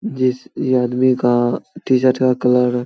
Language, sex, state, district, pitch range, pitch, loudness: Hindi, male, Bihar, Samastipur, 125-130 Hz, 125 Hz, -17 LUFS